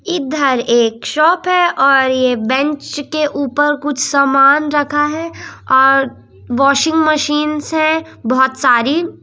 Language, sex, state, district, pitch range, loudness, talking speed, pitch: Hindi, female, Madhya Pradesh, Umaria, 265-305 Hz, -14 LUFS, 125 wpm, 290 Hz